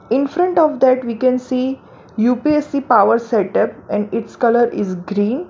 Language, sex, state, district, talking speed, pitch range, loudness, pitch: English, female, Gujarat, Valsad, 165 wpm, 220-270 Hz, -17 LUFS, 250 Hz